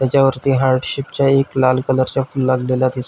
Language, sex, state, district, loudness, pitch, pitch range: Marathi, male, Maharashtra, Pune, -17 LUFS, 130 Hz, 130-135 Hz